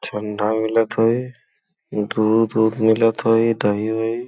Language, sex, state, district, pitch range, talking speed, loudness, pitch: Bhojpuri, male, Uttar Pradesh, Gorakhpur, 110-115 Hz, 170 wpm, -19 LUFS, 110 Hz